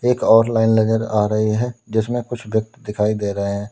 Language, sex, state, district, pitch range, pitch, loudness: Hindi, male, Uttar Pradesh, Lalitpur, 105-115 Hz, 110 Hz, -19 LUFS